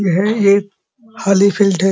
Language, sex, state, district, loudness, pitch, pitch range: Hindi, male, Uttar Pradesh, Muzaffarnagar, -14 LUFS, 200 Hz, 195-205 Hz